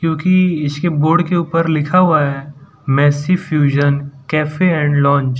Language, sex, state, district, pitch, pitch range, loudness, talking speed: Hindi, male, Gujarat, Valsad, 150 Hz, 145-170 Hz, -15 LUFS, 165 wpm